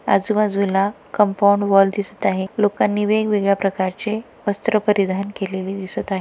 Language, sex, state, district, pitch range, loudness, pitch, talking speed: Marathi, female, Maharashtra, Pune, 195-210 Hz, -19 LUFS, 200 Hz, 125 wpm